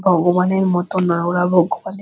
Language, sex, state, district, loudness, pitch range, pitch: Bengali, female, West Bengal, Purulia, -17 LUFS, 175-185 Hz, 180 Hz